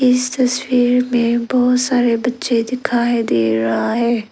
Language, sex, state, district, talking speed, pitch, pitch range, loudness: Hindi, female, Arunachal Pradesh, Lower Dibang Valley, 140 wpm, 240 Hz, 230-250 Hz, -16 LUFS